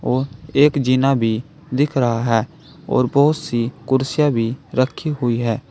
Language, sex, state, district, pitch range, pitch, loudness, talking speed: Hindi, male, Uttar Pradesh, Saharanpur, 120-145 Hz, 130 Hz, -19 LUFS, 155 wpm